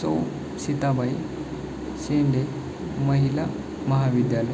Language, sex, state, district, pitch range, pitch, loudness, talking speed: Marathi, male, Maharashtra, Chandrapur, 130-145 Hz, 135 Hz, -25 LUFS, 65 wpm